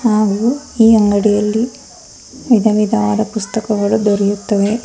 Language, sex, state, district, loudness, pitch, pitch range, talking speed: Kannada, female, Karnataka, Bangalore, -14 LUFS, 215 Hz, 210-225 Hz, 75 wpm